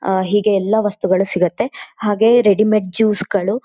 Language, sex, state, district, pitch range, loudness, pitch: Kannada, female, Karnataka, Shimoga, 195-215 Hz, -16 LUFS, 205 Hz